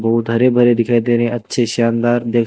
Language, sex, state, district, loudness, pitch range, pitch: Hindi, male, Rajasthan, Bikaner, -15 LUFS, 115-120 Hz, 120 Hz